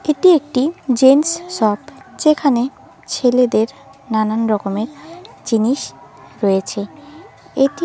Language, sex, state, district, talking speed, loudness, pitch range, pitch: Bengali, female, West Bengal, Kolkata, 85 wpm, -17 LUFS, 220-295 Hz, 260 Hz